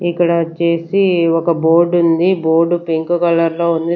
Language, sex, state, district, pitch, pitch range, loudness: Telugu, female, Andhra Pradesh, Sri Satya Sai, 170 Hz, 165-175 Hz, -14 LUFS